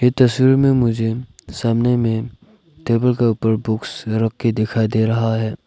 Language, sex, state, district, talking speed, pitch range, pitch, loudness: Hindi, male, Arunachal Pradesh, Lower Dibang Valley, 160 wpm, 110-125 Hz, 115 Hz, -18 LUFS